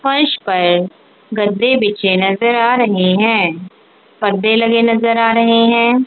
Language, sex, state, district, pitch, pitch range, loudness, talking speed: Hindi, female, Punjab, Kapurthala, 225 Hz, 195-235 Hz, -13 LUFS, 140 wpm